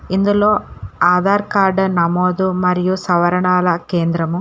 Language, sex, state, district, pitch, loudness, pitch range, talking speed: Telugu, female, Telangana, Hyderabad, 180 Hz, -16 LUFS, 175-190 Hz, 95 wpm